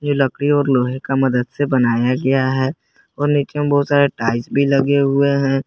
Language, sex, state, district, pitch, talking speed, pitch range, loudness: Hindi, male, Jharkhand, Garhwa, 135 Hz, 200 wpm, 130-145 Hz, -17 LUFS